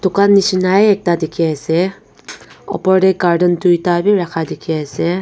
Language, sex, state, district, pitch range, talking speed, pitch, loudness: Nagamese, female, Nagaland, Dimapur, 170-190 Hz, 150 wpm, 180 Hz, -14 LUFS